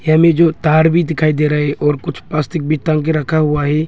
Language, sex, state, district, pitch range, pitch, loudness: Hindi, male, Arunachal Pradesh, Longding, 150-160 Hz, 155 Hz, -14 LUFS